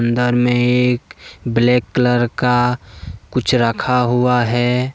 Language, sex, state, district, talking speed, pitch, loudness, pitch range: Hindi, male, Jharkhand, Deoghar, 120 wpm, 125 Hz, -16 LUFS, 120-125 Hz